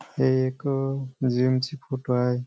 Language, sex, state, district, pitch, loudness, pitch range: Marathi, male, Maharashtra, Nagpur, 130 Hz, -25 LUFS, 125-135 Hz